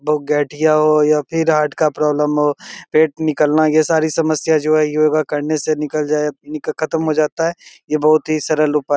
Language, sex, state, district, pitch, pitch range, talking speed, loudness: Hindi, male, Bihar, Begusarai, 155 Hz, 150-155 Hz, 205 wpm, -16 LUFS